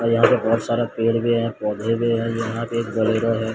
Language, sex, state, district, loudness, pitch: Hindi, male, Odisha, Sambalpur, -21 LUFS, 115 Hz